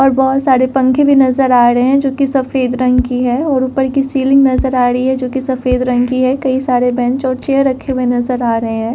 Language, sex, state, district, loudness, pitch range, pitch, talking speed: Hindi, female, Delhi, New Delhi, -13 LUFS, 250-270 Hz, 260 Hz, 270 wpm